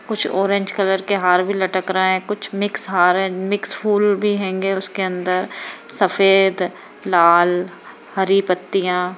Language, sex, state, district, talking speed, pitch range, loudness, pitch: Hindi, female, Bihar, Kishanganj, 155 wpm, 185-200 Hz, -18 LUFS, 190 Hz